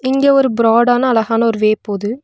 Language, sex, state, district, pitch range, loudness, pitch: Tamil, female, Tamil Nadu, Nilgiris, 220-255 Hz, -14 LUFS, 230 Hz